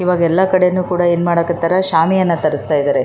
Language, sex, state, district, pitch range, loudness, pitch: Kannada, female, Karnataka, Raichur, 165-185 Hz, -15 LUFS, 175 Hz